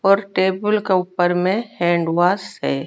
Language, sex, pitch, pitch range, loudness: Hindi, female, 185 Hz, 175-195 Hz, -19 LUFS